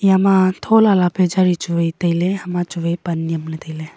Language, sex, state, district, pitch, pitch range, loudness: Wancho, female, Arunachal Pradesh, Longding, 175 Hz, 170-185 Hz, -17 LUFS